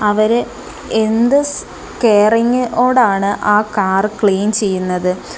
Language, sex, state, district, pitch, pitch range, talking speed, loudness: Malayalam, female, Kerala, Kollam, 215 Hz, 200-235 Hz, 100 wpm, -14 LUFS